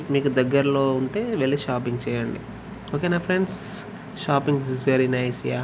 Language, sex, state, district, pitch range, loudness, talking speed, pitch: Telugu, male, Telangana, Karimnagar, 130-175 Hz, -24 LUFS, 150 wpm, 140 Hz